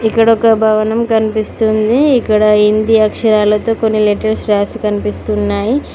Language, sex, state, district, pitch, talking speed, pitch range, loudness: Telugu, female, Telangana, Mahabubabad, 215 Hz, 110 wpm, 210-225 Hz, -12 LUFS